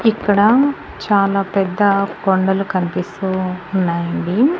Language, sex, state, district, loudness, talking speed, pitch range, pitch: Telugu, female, Andhra Pradesh, Annamaya, -17 LUFS, 80 wpm, 185-205 Hz, 195 Hz